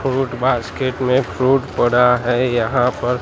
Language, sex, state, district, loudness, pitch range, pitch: Hindi, male, Gujarat, Gandhinagar, -17 LUFS, 125-130 Hz, 125 Hz